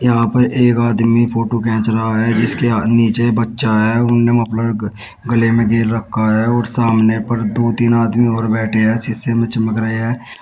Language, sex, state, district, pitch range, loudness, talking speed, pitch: Hindi, male, Uttar Pradesh, Shamli, 110-120 Hz, -15 LUFS, 195 wpm, 115 Hz